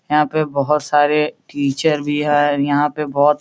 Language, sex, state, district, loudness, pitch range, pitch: Hindi, male, Uttar Pradesh, Etah, -17 LUFS, 145-150 Hz, 150 Hz